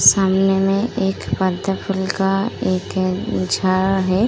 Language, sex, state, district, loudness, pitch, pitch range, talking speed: Hindi, female, Uttar Pradesh, Muzaffarnagar, -19 LUFS, 190 Hz, 185-195 Hz, 100 wpm